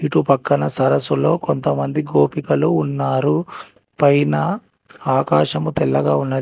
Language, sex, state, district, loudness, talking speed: Telugu, male, Telangana, Hyderabad, -18 LUFS, 95 wpm